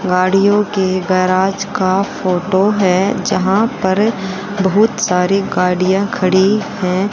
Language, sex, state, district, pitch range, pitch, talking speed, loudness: Hindi, female, Haryana, Rohtak, 185-200 Hz, 190 Hz, 110 wpm, -14 LUFS